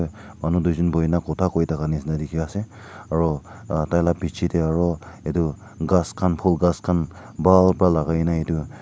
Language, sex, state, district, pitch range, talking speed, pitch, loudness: Nagamese, male, Nagaland, Kohima, 80-90 Hz, 185 wpm, 85 Hz, -22 LUFS